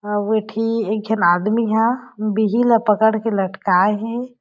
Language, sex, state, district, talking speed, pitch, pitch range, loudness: Chhattisgarhi, female, Chhattisgarh, Jashpur, 175 wpm, 220 Hz, 210-225 Hz, -18 LUFS